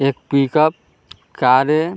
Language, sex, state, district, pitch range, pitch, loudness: Hindi, male, Bihar, Vaishali, 135-155 Hz, 140 Hz, -16 LUFS